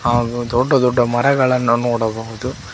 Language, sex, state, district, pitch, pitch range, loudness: Kannada, male, Karnataka, Koppal, 120 Hz, 120-125 Hz, -17 LUFS